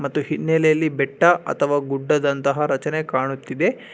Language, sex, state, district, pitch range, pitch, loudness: Kannada, male, Karnataka, Bangalore, 140-155 Hz, 145 Hz, -20 LUFS